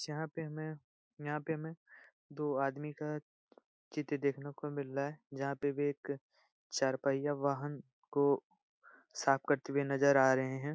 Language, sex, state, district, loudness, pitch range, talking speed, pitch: Hindi, male, Bihar, Supaul, -36 LUFS, 140-150 Hz, 165 wpm, 145 Hz